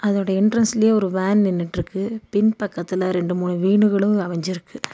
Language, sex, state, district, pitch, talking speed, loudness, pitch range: Tamil, female, Tamil Nadu, Nilgiris, 195 Hz, 120 wpm, -20 LUFS, 180-210 Hz